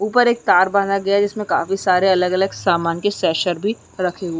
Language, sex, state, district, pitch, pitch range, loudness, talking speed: Hindi, female, Uttarakhand, Uttarkashi, 195 Hz, 180-205 Hz, -18 LUFS, 230 wpm